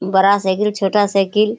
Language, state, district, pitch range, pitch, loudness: Surjapuri, Bihar, Kishanganj, 195-210 Hz, 200 Hz, -16 LUFS